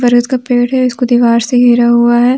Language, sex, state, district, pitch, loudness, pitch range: Hindi, female, Jharkhand, Deoghar, 245 Hz, -10 LUFS, 240-250 Hz